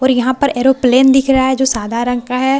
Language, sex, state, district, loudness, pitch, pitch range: Hindi, female, Bihar, Katihar, -13 LUFS, 260 Hz, 245-265 Hz